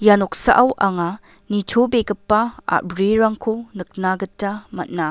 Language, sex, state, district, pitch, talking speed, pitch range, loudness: Garo, female, Meghalaya, West Garo Hills, 205 Hz, 95 wpm, 190-225 Hz, -18 LUFS